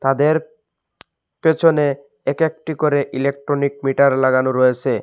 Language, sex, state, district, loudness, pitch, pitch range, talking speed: Bengali, male, Assam, Hailakandi, -18 LUFS, 140 Hz, 135-155 Hz, 105 wpm